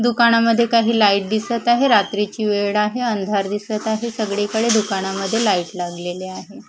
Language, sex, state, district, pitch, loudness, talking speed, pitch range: Marathi, female, Maharashtra, Mumbai Suburban, 215 Hz, -18 LUFS, 145 wpm, 200-230 Hz